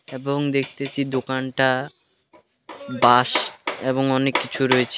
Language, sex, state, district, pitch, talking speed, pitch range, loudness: Bengali, male, West Bengal, Alipurduar, 130 Hz, 95 wpm, 130-140 Hz, -21 LUFS